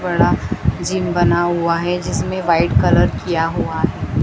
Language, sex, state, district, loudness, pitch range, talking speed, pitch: Hindi, female, Madhya Pradesh, Dhar, -17 LUFS, 120-175 Hz, 155 wpm, 170 Hz